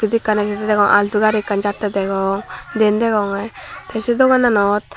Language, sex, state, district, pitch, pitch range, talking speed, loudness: Chakma, female, Tripura, Dhalai, 210 Hz, 200-220 Hz, 145 wpm, -17 LUFS